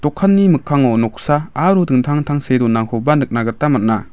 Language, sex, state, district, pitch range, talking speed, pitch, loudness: Garo, male, Meghalaya, West Garo Hills, 115-150 Hz, 145 wpm, 145 Hz, -15 LUFS